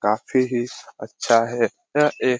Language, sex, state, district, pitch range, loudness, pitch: Hindi, male, Bihar, Lakhisarai, 115-130 Hz, -21 LUFS, 125 Hz